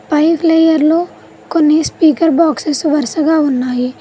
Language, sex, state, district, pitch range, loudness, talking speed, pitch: Telugu, female, Telangana, Mahabubabad, 300-325 Hz, -12 LUFS, 120 wpm, 310 Hz